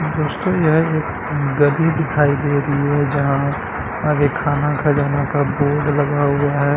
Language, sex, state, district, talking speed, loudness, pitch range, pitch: Hindi, male, Bihar, Katihar, 150 wpm, -18 LUFS, 145-150 Hz, 145 Hz